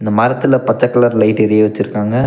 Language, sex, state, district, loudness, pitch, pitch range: Tamil, male, Tamil Nadu, Nilgiris, -13 LUFS, 110 Hz, 105-125 Hz